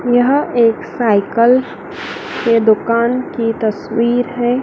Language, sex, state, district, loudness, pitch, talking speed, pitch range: Hindi, female, Madhya Pradesh, Dhar, -15 LUFS, 235 Hz, 105 wpm, 230-245 Hz